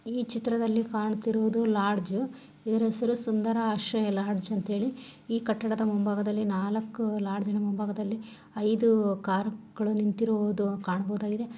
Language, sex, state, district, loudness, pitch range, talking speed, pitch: Kannada, female, Karnataka, Shimoga, -29 LUFS, 205-225 Hz, 115 wpm, 215 Hz